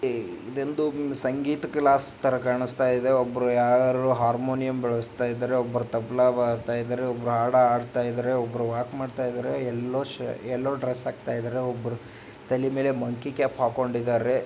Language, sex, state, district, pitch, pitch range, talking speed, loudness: Kannada, male, Karnataka, Bijapur, 125 Hz, 120-130 Hz, 140 wpm, -26 LUFS